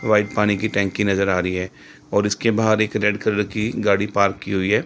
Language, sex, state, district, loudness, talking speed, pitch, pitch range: Hindi, male, Chandigarh, Chandigarh, -20 LUFS, 245 wpm, 105 Hz, 100-110 Hz